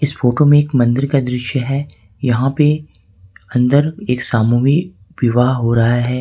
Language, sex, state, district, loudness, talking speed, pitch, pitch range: Hindi, male, Jharkhand, Ranchi, -15 LUFS, 155 wpm, 125 Hz, 120-145 Hz